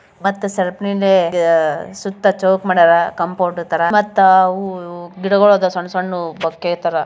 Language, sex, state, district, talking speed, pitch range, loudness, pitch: Kannada, female, Karnataka, Bijapur, 135 wpm, 170-195 Hz, -15 LUFS, 185 Hz